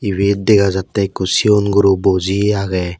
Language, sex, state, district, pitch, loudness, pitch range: Chakma, male, Tripura, West Tripura, 100 Hz, -15 LUFS, 95-100 Hz